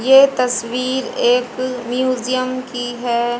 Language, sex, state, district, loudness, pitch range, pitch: Hindi, female, Haryana, Jhajjar, -18 LUFS, 245-255 Hz, 250 Hz